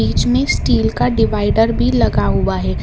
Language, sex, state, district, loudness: Hindi, male, Karnataka, Bangalore, -15 LUFS